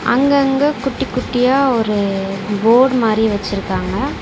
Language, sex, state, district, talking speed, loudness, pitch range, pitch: Tamil, female, Tamil Nadu, Chennai, 100 wpm, -16 LUFS, 200-270 Hz, 230 Hz